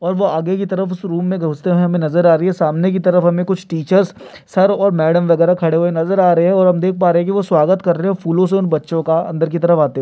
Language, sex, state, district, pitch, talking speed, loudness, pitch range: Hindi, male, Bihar, Kishanganj, 175 Hz, 220 wpm, -15 LUFS, 165-190 Hz